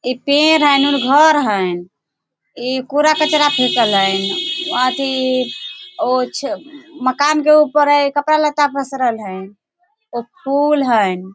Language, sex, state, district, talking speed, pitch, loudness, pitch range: Hindi, female, Bihar, Sitamarhi, 120 wpm, 275 Hz, -15 LUFS, 240-300 Hz